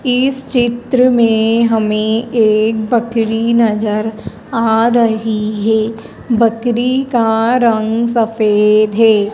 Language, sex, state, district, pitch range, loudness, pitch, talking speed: Hindi, female, Madhya Pradesh, Dhar, 220-235 Hz, -13 LUFS, 225 Hz, 95 wpm